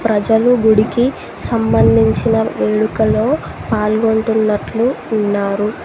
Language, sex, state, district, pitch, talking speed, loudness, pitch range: Telugu, female, Telangana, Mahabubabad, 220 Hz, 60 wpm, -15 LUFS, 210-225 Hz